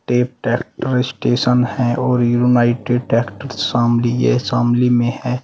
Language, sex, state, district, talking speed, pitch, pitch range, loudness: Hindi, male, Uttar Pradesh, Shamli, 130 wpm, 120 Hz, 120-125 Hz, -17 LUFS